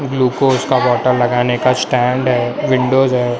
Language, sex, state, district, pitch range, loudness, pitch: Hindi, male, Maharashtra, Mumbai Suburban, 125-130 Hz, -14 LUFS, 125 Hz